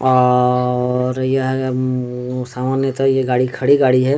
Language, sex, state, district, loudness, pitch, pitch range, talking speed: Hindi, male, Bihar, Darbhanga, -17 LUFS, 130 Hz, 125-130 Hz, 145 wpm